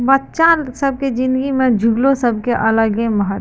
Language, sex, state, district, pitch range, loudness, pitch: Maithili, female, Bihar, Madhepura, 230-270 Hz, -16 LUFS, 255 Hz